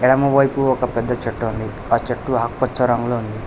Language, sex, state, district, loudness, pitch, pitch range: Telugu, male, Telangana, Hyderabad, -19 LUFS, 120 Hz, 115-130 Hz